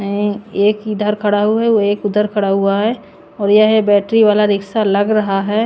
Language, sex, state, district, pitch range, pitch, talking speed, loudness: Hindi, female, Punjab, Pathankot, 205-215 Hz, 210 Hz, 210 wpm, -14 LUFS